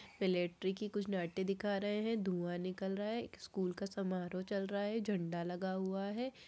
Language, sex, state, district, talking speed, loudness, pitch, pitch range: Hindi, female, Bihar, Saharsa, 205 wpm, -39 LUFS, 195 Hz, 185-205 Hz